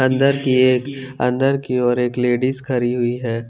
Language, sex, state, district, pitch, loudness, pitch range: Hindi, male, Chandigarh, Chandigarh, 125 Hz, -18 LUFS, 125-130 Hz